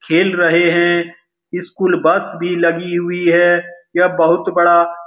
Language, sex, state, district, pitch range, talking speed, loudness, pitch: Hindi, male, Bihar, Lakhisarai, 170-175 Hz, 155 wpm, -14 LUFS, 175 Hz